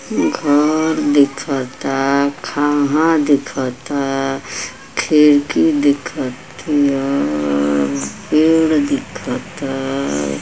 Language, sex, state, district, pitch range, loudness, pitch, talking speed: Bhojpuri, female, Uttar Pradesh, Ghazipur, 125-145 Hz, -17 LUFS, 140 Hz, 45 wpm